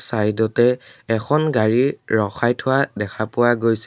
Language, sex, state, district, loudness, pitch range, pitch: Assamese, male, Assam, Sonitpur, -19 LUFS, 110-125 Hz, 115 Hz